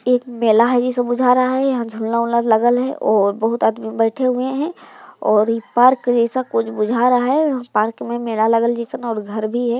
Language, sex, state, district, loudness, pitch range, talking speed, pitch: Hindi, female, Bihar, Muzaffarpur, -17 LUFS, 225-250 Hz, 215 wpm, 235 Hz